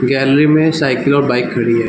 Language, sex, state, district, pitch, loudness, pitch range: Hindi, male, Bihar, Darbhanga, 135 Hz, -13 LUFS, 125-140 Hz